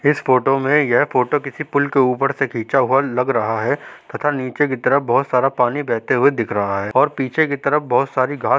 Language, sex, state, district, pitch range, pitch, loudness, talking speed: Hindi, male, Uttar Pradesh, Hamirpur, 125-145 Hz, 135 Hz, -18 LUFS, 245 wpm